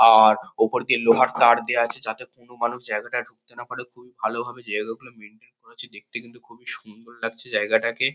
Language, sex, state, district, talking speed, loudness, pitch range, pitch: Bengali, male, West Bengal, Kolkata, 190 wpm, -22 LUFS, 110-120 Hz, 115 Hz